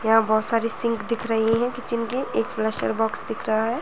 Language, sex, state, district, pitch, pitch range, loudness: Hindi, female, Uttar Pradesh, Jyotiba Phule Nagar, 225 Hz, 220-235 Hz, -24 LUFS